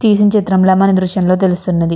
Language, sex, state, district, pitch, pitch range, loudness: Telugu, female, Andhra Pradesh, Krishna, 190 Hz, 185-195 Hz, -12 LUFS